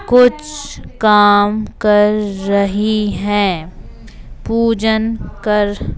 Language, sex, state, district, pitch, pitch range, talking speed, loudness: Hindi, male, Madhya Pradesh, Bhopal, 210 Hz, 205-220 Hz, 70 wpm, -14 LUFS